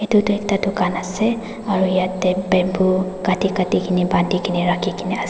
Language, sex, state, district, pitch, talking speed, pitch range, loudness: Nagamese, female, Nagaland, Dimapur, 185 Hz, 145 wpm, 185-195 Hz, -19 LUFS